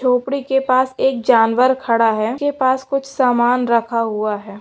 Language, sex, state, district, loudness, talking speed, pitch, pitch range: Hindi, female, Maharashtra, Solapur, -17 LUFS, 180 wpm, 250 Hz, 230-265 Hz